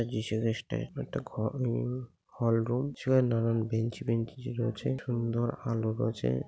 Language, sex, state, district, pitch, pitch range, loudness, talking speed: Bengali, male, West Bengal, North 24 Parganas, 115 Hz, 110-125 Hz, -32 LUFS, 110 wpm